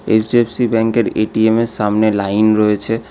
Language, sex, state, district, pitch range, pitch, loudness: Bengali, male, West Bengal, Alipurduar, 105-115 Hz, 110 Hz, -15 LUFS